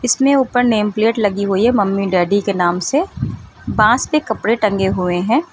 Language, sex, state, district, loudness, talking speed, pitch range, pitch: Hindi, female, Uttar Pradesh, Lucknow, -16 LUFS, 195 wpm, 195-245 Hz, 215 Hz